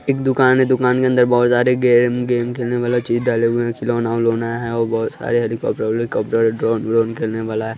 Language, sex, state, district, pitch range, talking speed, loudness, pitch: Hindi, male, Bihar, West Champaran, 115-125 Hz, 215 wpm, -17 LUFS, 120 Hz